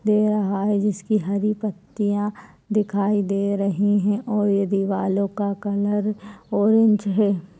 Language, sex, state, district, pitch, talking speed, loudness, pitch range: Hindi, female, Chhattisgarh, Balrampur, 205 Hz, 135 wpm, -22 LUFS, 200-210 Hz